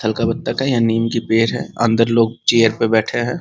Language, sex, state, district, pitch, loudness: Hindi, male, Bihar, Muzaffarpur, 115 Hz, -17 LUFS